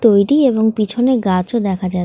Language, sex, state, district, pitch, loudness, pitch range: Bengali, female, West Bengal, North 24 Parganas, 220 Hz, -15 LUFS, 185-240 Hz